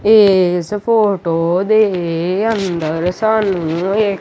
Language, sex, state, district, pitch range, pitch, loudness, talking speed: Punjabi, male, Punjab, Kapurthala, 175-215 Hz, 190 Hz, -15 LUFS, 85 wpm